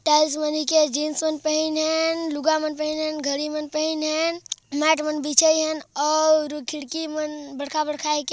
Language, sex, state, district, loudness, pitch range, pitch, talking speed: Hindi, male, Chhattisgarh, Jashpur, -23 LUFS, 300-315 Hz, 305 Hz, 175 wpm